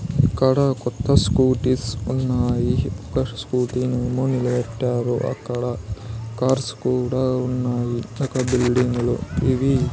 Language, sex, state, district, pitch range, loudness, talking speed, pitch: Telugu, male, Andhra Pradesh, Sri Satya Sai, 120-130 Hz, -21 LUFS, 90 wpm, 125 Hz